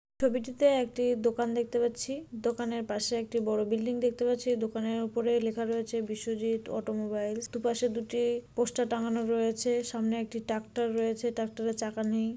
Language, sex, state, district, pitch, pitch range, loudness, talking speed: Bengali, female, West Bengal, Dakshin Dinajpur, 230 Hz, 225-240 Hz, -31 LUFS, 150 wpm